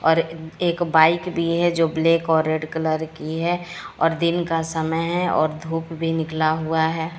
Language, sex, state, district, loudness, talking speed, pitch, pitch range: Hindi, female, Odisha, Sambalpur, -21 LUFS, 190 wpm, 165 Hz, 160-170 Hz